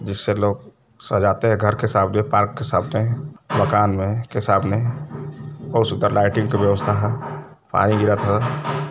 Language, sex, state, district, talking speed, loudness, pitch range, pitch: Hindi, male, Uttar Pradesh, Varanasi, 155 wpm, -20 LUFS, 100-120 Hz, 105 Hz